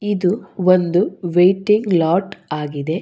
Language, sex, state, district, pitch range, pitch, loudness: Kannada, female, Karnataka, Bangalore, 170-195 Hz, 180 Hz, -17 LUFS